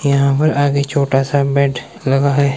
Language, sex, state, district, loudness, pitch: Hindi, male, Himachal Pradesh, Shimla, -15 LUFS, 140 Hz